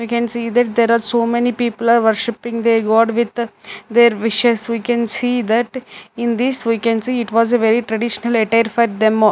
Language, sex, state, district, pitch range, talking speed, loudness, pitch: English, female, Punjab, Fazilka, 225-235 Hz, 225 wpm, -16 LUFS, 235 Hz